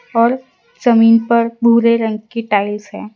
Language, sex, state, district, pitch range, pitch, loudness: Hindi, female, Gujarat, Valsad, 220-235 Hz, 230 Hz, -14 LUFS